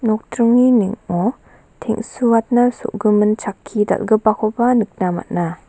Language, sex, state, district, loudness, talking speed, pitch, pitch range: Garo, female, Meghalaya, West Garo Hills, -17 LUFS, 85 wpm, 220 Hz, 210-235 Hz